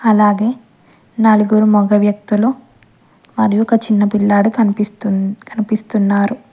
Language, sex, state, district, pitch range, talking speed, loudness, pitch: Telugu, female, Telangana, Mahabubabad, 205-225 Hz, 85 wpm, -14 LUFS, 215 Hz